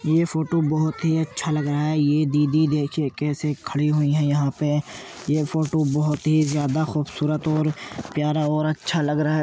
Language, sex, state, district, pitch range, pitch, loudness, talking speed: Hindi, male, Uttar Pradesh, Jyotiba Phule Nagar, 150-155 Hz, 150 Hz, -22 LUFS, 195 wpm